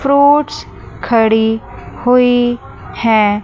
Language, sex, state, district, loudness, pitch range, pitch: Hindi, female, Chandigarh, Chandigarh, -13 LUFS, 220-275 Hz, 240 Hz